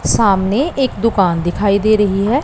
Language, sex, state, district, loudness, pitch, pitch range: Hindi, female, Punjab, Pathankot, -15 LUFS, 205 Hz, 195-230 Hz